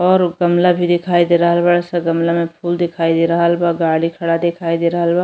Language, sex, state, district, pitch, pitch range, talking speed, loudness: Bhojpuri, female, Uttar Pradesh, Deoria, 170 Hz, 170-175 Hz, 230 wpm, -15 LUFS